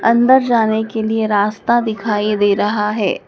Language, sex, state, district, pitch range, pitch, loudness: Hindi, male, Madhya Pradesh, Dhar, 210-230 Hz, 220 Hz, -15 LUFS